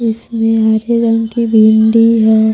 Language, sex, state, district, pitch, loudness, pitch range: Hindi, female, Jharkhand, Deoghar, 225 Hz, -11 LUFS, 220-230 Hz